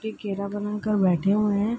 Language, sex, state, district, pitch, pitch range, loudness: Hindi, female, Bihar, Darbhanga, 205 Hz, 200-215 Hz, -24 LUFS